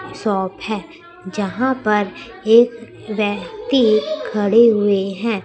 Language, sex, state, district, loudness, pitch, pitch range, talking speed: Hindi, female, Chhattisgarh, Raipur, -18 LUFS, 220 Hz, 205-255 Hz, 100 wpm